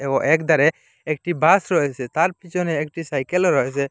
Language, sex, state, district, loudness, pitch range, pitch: Bengali, male, Assam, Hailakandi, -20 LUFS, 145-175 Hz, 160 Hz